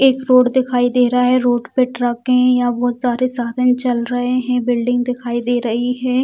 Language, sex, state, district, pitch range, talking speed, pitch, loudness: Hindi, female, Bihar, Muzaffarpur, 245-250 Hz, 210 wpm, 245 Hz, -16 LUFS